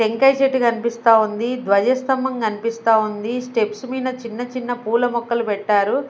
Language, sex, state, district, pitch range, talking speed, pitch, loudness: Telugu, female, Andhra Pradesh, Sri Satya Sai, 220-255 Hz, 140 wpm, 235 Hz, -19 LUFS